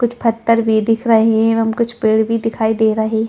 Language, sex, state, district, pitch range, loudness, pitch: Hindi, female, Chhattisgarh, Balrampur, 220-230 Hz, -15 LUFS, 225 Hz